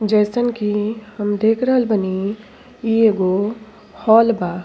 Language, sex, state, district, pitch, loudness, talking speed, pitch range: Bhojpuri, female, Uttar Pradesh, Ghazipur, 215 Hz, -18 LUFS, 130 wpm, 205-230 Hz